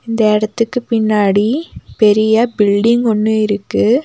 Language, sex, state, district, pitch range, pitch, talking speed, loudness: Tamil, female, Tamil Nadu, Nilgiris, 210-235 Hz, 220 Hz, 105 wpm, -14 LUFS